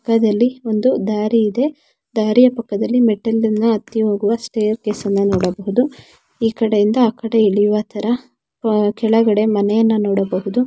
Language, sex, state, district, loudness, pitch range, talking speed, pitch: Kannada, female, Karnataka, Dakshina Kannada, -17 LUFS, 210-230 Hz, 110 wpm, 220 Hz